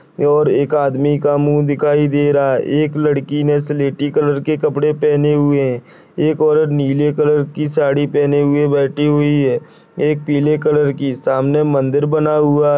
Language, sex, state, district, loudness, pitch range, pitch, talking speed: Hindi, male, Bihar, Purnia, -15 LUFS, 145-150 Hz, 145 Hz, 185 wpm